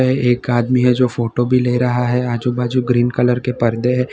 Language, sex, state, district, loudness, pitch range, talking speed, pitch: Hindi, male, Gujarat, Valsad, -16 LUFS, 120-125 Hz, 235 wpm, 125 Hz